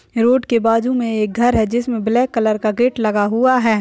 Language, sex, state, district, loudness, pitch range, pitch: Hindi, female, Uttar Pradesh, Etah, -16 LUFS, 220-245 Hz, 230 Hz